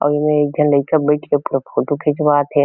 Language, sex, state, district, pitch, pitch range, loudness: Chhattisgarhi, male, Chhattisgarh, Kabirdham, 145 Hz, 145-150 Hz, -16 LUFS